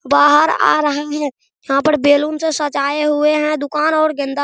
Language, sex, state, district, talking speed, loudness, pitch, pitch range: Hindi, male, Bihar, Araria, 200 wpm, -15 LUFS, 295 Hz, 285-305 Hz